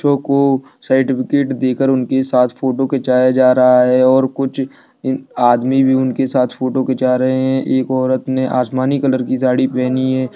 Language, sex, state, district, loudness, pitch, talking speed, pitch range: Hindi, male, Bihar, Kishanganj, -15 LUFS, 130 Hz, 170 wpm, 130-135 Hz